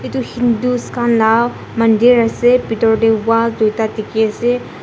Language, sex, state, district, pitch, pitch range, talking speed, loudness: Nagamese, female, Nagaland, Dimapur, 230 Hz, 225-240 Hz, 150 wpm, -14 LUFS